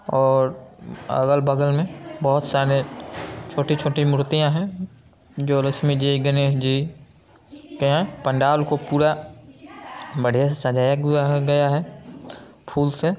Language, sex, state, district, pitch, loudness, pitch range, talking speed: Hindi, male, Bihar, Saran, 145 Hz, -21 LUFS, 135-150 Hz, 105 wpm